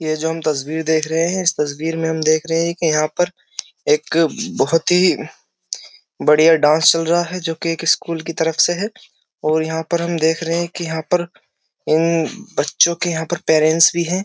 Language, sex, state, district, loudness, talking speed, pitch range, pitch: Hindi, male, Uttar Pradesh, Jyotiba Phule Nagar, -17 LUFS, 210 wpm, 160-170 Hz, 165 Hz